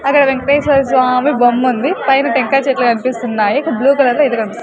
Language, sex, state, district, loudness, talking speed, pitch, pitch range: Telugu, female, Andhra Pradesh, Sri Satya Sai, -13 LUFS, 195 wpm, 260 Hz, 245-275 Hz